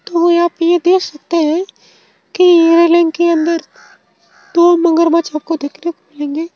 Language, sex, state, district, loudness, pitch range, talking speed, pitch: Bhojpuri, female, Uttar Pradesh, Ghazipur, -13 LUFS, 325-345 Hz, 155 wpm, 335 Hz